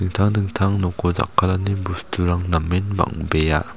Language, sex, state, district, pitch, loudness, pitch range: Garo, male, Meghalaya, South Garo Hills, 90 Hz, -21 LUFS, 85-95 Hz